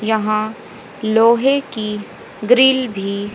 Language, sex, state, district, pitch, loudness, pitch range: Hindi, female, Haryana, Jhajjar, 220 Hz, -16 LUFS, 210-245 Hz